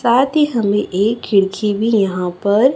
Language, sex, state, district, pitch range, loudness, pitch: Hindi, female, Chhattisgarh, Raipur, 200-235 Hz, -16 LUFS, 210 Hz